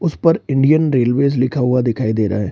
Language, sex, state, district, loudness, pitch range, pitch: Hindi, male, Bihar, Purnia, -16 LUFS, 120-150 Hz, 130 Hz